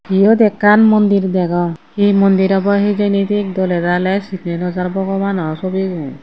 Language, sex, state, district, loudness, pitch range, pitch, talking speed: Chakma, female, Tripura, Unakoti, -15 LUFS, 180-200 Hz, 195 Hz, 155 wpm